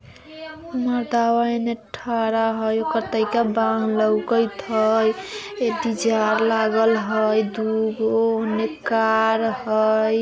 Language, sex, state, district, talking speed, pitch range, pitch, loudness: Bajjika, female, Bihar, Vaishali, 75 wpm, 220-235 Hz, 225 Hz, -21 LUFS